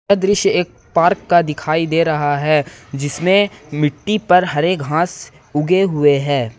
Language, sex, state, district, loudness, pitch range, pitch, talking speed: Hindi, male, Jharkhand, Ranchi, -16 LUFS, 145-180 Hz, 160 Hz, 155 wpm